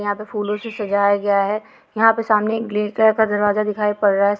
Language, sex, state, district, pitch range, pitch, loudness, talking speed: Hindi, female, Jharkhand, Jamtara, 205-220 Hz, 210 Hz, -19 LUFS, 275 wpm